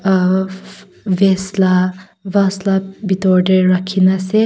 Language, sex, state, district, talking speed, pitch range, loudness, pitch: Nagamese, female, Nagaland, Kohima, 110 wpm, 185-195 Hz, -15 LUFS, 190 Hz